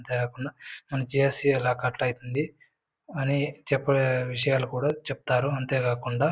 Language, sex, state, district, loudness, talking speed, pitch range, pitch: Telugu, male, Andhra Pradesh, Anantapur, -27 LUFS, 135 wpm, 125-140 Hz, 135 Hz